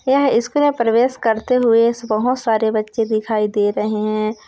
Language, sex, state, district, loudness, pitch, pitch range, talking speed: Hindi, female, Chhattisgarh, Kabirdham, -17 LUFS, 225 Hz, 215-245 Hz, 160 wpm